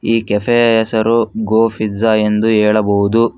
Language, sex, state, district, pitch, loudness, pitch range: Kannada, male, Karnataka, Bangalore, 110 Hz, -14 LUFS, 105-115 Hz